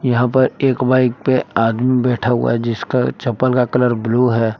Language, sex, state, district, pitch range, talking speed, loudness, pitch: Hindi, male, Jharkhand, Palamu, 115-130 Hz, 210 wpm, -16 LUFS, 125 Hz